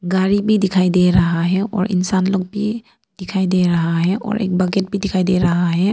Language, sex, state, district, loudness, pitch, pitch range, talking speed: Hindi, female, Arunachal Pradesh, Papum Pare, -17 LUFS, 185 Hz, 180-200 Hz, 225 wpm